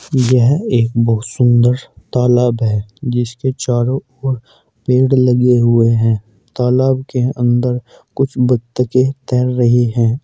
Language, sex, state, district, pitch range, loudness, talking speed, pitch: Hindi, male, Uttar Pradesh, Saharanpur, 120-130 Hz, -15 LUFS, 130 wpm, 125 Hz